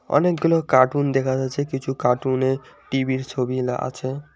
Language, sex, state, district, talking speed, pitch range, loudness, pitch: Bengali, male, West Bengal, Alipurduar, 140 wpm, 130-140 Hz, -22 LUFS, 130 Hz